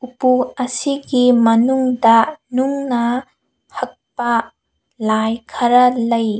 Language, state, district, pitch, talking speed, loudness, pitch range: Manipuri, Manipur, Imphal West, 250 Hz, 75 wpm, -16 LUFS, 230-255 Hz